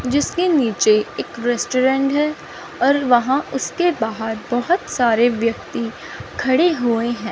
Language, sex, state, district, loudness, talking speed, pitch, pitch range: Hindi, female, Chandigarh, Chandigarh, -19 LUFS, 125 wpm, 245 Hz, 230-280 Hz